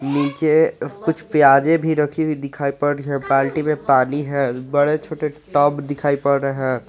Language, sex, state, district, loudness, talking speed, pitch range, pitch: Hindi, male, Jharkhand, Garhwa, -19 LUFS, 185 wpm, 140-150 Hz, 145 Hz